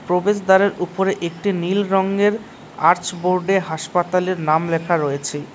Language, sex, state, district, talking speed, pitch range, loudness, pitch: Bengali, male, West Bengal, Cooch Behar, 120 wpm, 170-195 Hz, -19 LUFS, 180 Hz